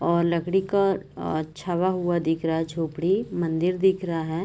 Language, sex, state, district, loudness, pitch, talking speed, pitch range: Hindi, female, Bihar, Gopalganj, -25 LUFS, 170 Hz, 175 wpm, 165-185 Hz